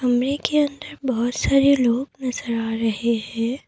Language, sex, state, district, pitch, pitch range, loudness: Hindi, female, Assam, Kamrup Metropolitan, 250 Hz, 235-275 Hz, -21 LUFS